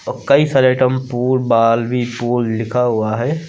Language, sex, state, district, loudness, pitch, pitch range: Hindi, male, Uttar Pradesh, Lucknow, -16 LUFS, 125 Hz, 115-130 Hz